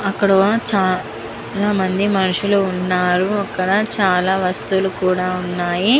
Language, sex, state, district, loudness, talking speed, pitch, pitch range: Telugu, female, Andhra Pradesh, Guntur, -17 LUFS, 110 wpm, 190 Hz, 180-200 Hz